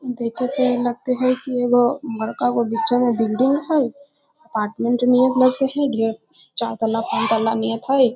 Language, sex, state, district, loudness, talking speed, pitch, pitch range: Maithili, female, Bihar, Muzaffarpur, -20 LUFS, 170 wpm, 245 Hz, 230-255 Hz